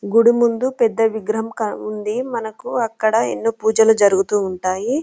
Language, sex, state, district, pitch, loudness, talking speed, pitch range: Telugu, female, Telangana, Karimnagar, 225 Hz, -18 LUFS, 145 wpm, 210-235 Hz